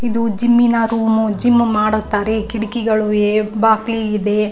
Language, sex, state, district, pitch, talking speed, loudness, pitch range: Kannada, female, Karnataka, Raichur, 220 Hz, 105 wpm, -15 LUFS, 215-230 Hz